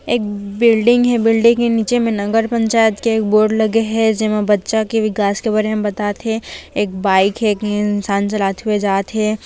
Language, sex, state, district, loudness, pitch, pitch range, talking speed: Hindi, female, Chhattisgarh, Raigarh, -16 LUFS, 215 Hz, 205-225 Hz, 205 wpm